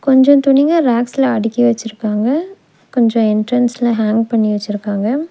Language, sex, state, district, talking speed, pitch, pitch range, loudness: Tamil, female, Tamil Nadu, Nilgiris, 115 wpm, 235 Hz, 220-270 Hz, -14 LUFS